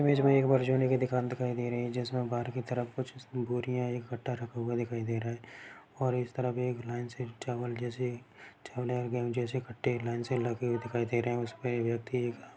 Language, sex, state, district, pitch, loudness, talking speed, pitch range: Hindi, male, Bihar, Darbhanga, 125 Hz, -33 LUFS, 245 wpm, 120-125 Hz